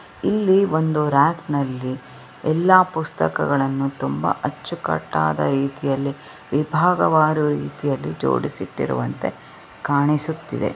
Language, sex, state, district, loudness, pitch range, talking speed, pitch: Kannada, female, Karnataka, Belgaum, -21 LUFS, 135-160 Hz, 80 wpm, 145 Hz